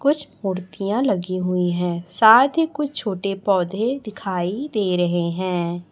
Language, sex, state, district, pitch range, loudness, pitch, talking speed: Hindi, male, Chhattisgarh, Raipur, 180-235 Hz, -21 LUFS, 195 Hz, 130 wpm